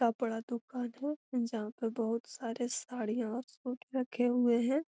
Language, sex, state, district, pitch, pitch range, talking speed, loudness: Magahi, female, Bihar, Gaya, 240 Hz, 230-250 Hz, 160 wpm, -35 LUFS